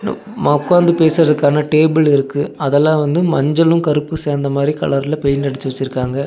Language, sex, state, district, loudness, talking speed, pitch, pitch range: Tamil, male, Tamil Nadu, Nilgiris, -15 LUFS, 145 wpm, 145 Hz, 140-160 Hz